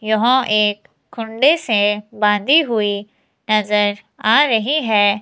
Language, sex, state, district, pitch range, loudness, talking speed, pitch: Hindi, female, Himachal Pradesh, Shimla, 210-235 Hz, -16 LUFS, 115 wpm, 215 Hz